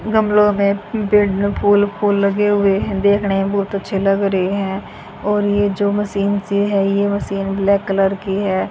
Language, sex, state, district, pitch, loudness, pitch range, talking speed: Hindi, female, Haryana, Jhajjar, 200 Hz, -17 LUFS, 195-205 Hz, 195 wpm